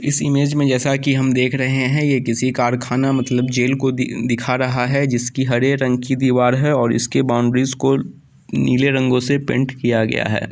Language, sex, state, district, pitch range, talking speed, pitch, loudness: Angika, male, Bihar, Samastipur, 125-135 Hz, 205 wpm, 130 Hz, -17 LUFS